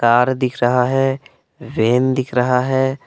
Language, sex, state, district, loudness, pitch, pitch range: Hindi, male, Jharkhand, Palamu, -17 LUFS, 130 Hz, 125-135 Hz